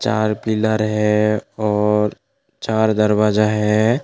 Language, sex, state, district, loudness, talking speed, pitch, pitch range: Hindi, male, Tripura, West Tripura, -18 LUFS, 105 wpm, 105 Hz, 105-110 Hz